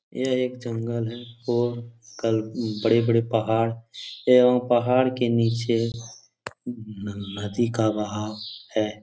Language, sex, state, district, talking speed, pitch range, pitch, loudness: Hindi, male, Uttar Pradesh, Etah, 115 wpm, 110-120 Hz, 115 Hz, -24 LUFS